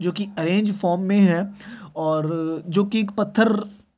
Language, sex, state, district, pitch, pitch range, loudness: Hindi, male, Chhattisgarh, Bilaspur, 200 Hz, 170-210 Hz, -22 LUFS